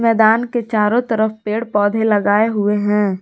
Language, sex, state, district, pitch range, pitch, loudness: Hindi, female, Jharkhand, Garhwa, 205-225 Hz, 215 Hz, -16 LUFS